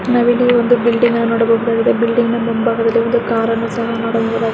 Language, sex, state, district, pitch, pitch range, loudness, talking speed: Kannada, female, Karnataka, Mysore, 230 Hz, 230-235 Hz, -15 LUFS, 185 wpm